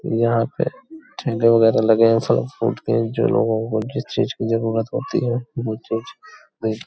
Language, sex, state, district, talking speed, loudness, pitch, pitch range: Hindi, male, Uttar Pradesh, Hamirpur, 185 wpm, -20 LUFS, 115 Hz, 115-125 Hz